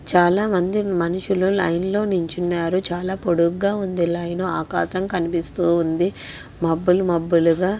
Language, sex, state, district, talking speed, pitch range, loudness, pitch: Telugu, female, Andhra Pradesh, Guntur, 90 wpm, 170-190 Hz, -21 LUFS, 175 Hz